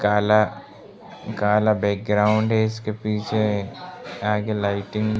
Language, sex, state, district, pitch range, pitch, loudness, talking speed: Hindi, male, Uttar Pradesh, Gorakhpur, 105-110 Hz, 105 Hz, -22 LUFS, 105 wpm